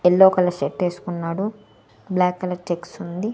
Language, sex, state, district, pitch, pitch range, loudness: Telugu, female, Andhra Pradesh, Sri Satya Sai, 180 Hz, 175-190 Hz, -22 LUFS